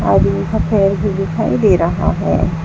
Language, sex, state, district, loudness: Hindi, female, Uttar Pradesh, Saharanpur, -15 LUFS